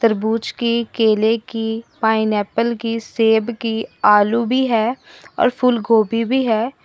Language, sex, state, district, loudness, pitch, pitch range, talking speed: Hindi, female, Assam, Sonitpur, -18 LUFS, 230 Hz, 220-235 Hz, 125 wpm